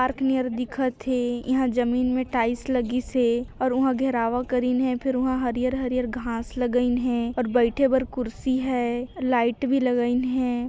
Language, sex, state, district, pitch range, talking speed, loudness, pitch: Hindi, female, Chhattisgarh, Sarguja, 245-260 Hz, 180 wpm, -24 LUFS, 250 Hz